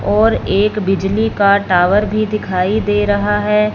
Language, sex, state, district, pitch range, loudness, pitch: Hindi, female, Punjab, Fazilka, 200-210 Hz, -14 LUFS, 205 Hz